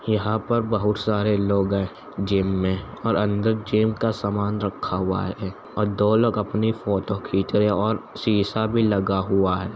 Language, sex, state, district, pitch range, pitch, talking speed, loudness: Hindi, male, Uttar Pradesh, Jalaun, 95-110 Hz, 105 Hz, 190 wpm, -23 LUFS